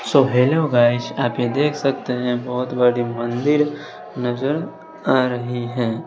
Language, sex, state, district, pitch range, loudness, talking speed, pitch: Hindi, male, Bihar, West Champaran, 120-140 Hz, -20 LUFS, 150 wpm, 125 Hz